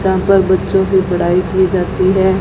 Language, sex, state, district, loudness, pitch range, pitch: Hindi, female, Rajasthan, Bikaner, -13 LUFS, 185-190 Hz, 190 Hz